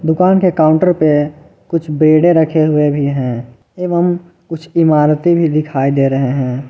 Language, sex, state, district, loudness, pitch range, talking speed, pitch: Hindi, male, Jharkhand, Ranchi, -13 LUFS, 140-170 Hz, 160 wpm, 155 Hz